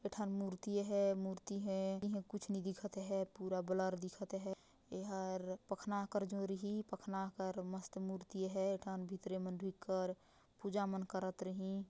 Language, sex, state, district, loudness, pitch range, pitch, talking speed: Chhattisgarhi, female, Chhattisgarh, Jashpur, -43 LUFS, 190-200 Hz, 195 Hz, 155 wpm